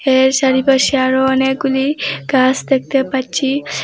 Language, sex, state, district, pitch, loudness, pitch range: Bengali, female, Assam, Hailakandi, 265 Hz, -15 LUFS, 265-275 Hz